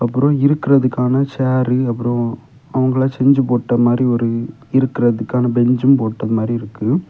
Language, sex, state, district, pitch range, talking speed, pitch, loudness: Tamil, male, Tamil Nadu, Kanyakumari, 120-135 Hz, 120 wpm, 125 Hz, -16 LUFS